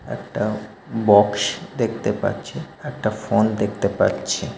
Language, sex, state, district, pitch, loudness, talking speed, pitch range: Bengali, male, West Bengal, North 24 Parganas, 105 Hz, -21 LUFS, 105 wpm, 100-105 Hz